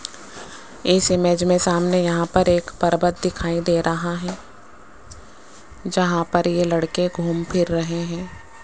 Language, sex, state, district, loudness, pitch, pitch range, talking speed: Hindi, female, Rajasthan, Jaipur, -20 LUFS, 175 Hz, 165-180 Hz, 130 wpm